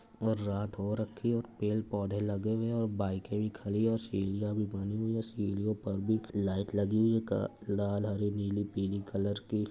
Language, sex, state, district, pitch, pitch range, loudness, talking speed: Hindi, male, Uttar Pradesh, Etah, 105 Hz, 100-110 Hz, -34 LUFS, 220 wpm